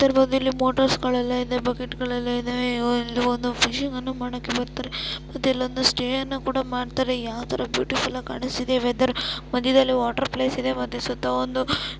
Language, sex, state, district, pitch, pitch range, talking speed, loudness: Kannada, female, Karnataka, Belgaum, 250 Hz, 245-260 Hz, 155 wpm, -24 LUFS